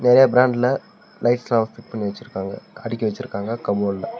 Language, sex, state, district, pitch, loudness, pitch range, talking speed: Tamil, male, Tamil Nadu, Namakkal, 115 Hz, -21 LUFS, 105-125 Hz, 145 wpm